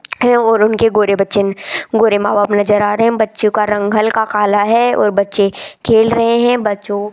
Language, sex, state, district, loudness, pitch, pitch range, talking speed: Hindi, female, Rajasthan, Jaipur, -13 LUFS, 210 Hz, 205-225 Hz, 210 wpm